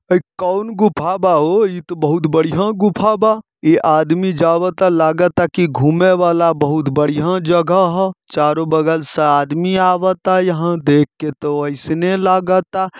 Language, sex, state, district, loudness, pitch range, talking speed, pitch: Bhojpuri, male, Jharkhand, Sahebganj, -15 LUFS, 155-185 Hz, 150 wpm, 175 Hz